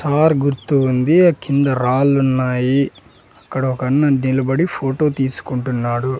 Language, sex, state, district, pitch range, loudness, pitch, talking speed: Telugu, male, Andhra Pradesh, Sri Satya Sai, 130-140 Hz, -17 LUFS, 135 Hz, 105 wpm